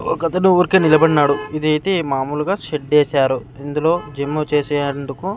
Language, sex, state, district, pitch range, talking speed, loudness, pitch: Telugu, male, Andhra Pradesh, Sri Satya Sai, 140-170 Hz, 125 wpm, -17 LUFS, 150 Hz